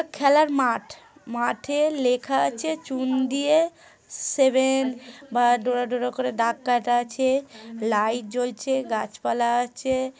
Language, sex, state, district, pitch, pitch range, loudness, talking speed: Bengali, female, West Bengal, Paschim Medinipur, 255 Hz, 240-275 Hz, -24 LUFS, 105 wpm